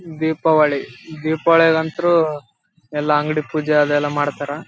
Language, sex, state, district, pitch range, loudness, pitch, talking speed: Kannada, male, Karnataka, Raichur, 150-160 Hz, -18 LUFS, 155 Hz, 190 wpm